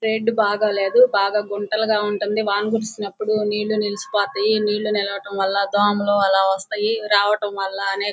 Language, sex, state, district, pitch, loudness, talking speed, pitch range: Telugu, female, Andhra Pradesh, Guntur, 205 Hz, -20 LUFS, 135 wpm, 200-215 Hz